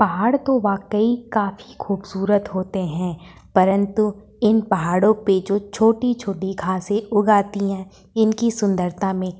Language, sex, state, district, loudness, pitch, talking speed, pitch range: Hindi, female, Uttar Pradesh, Varanasi, -20 LUFS, 200 Hz, 135 wpm, 190-215 Hz